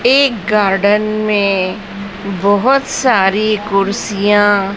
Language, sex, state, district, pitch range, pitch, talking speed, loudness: Hindi, male, Madhya Pradesh, Dhar, 200-215 Hz, 205 Hz, 75 wpm, -13 LUFS